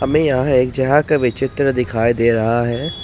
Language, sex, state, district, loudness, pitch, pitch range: Hindi, male, Jharkhand, Ranchi, -16 LUFS, 130 Hz, 120-140 Hz